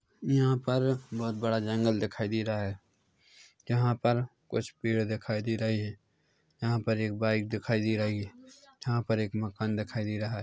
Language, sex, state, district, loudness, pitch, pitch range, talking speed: Hindi, male, Chhattisgarh, Korba, -31 LUFS, 110 Hz, 110-120 Hz, 190 wpm